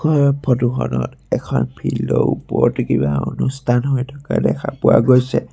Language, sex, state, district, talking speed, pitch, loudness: Assamese, male, Assam, Sonitpur, 150 wpm, 125 Hz, -18 LUFS